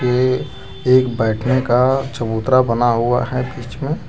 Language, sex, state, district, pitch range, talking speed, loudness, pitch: Hindi, male, Jharkhand, Deoghar, 120-130 Hz, 145 wpm, -17 LUFS, 125 Hz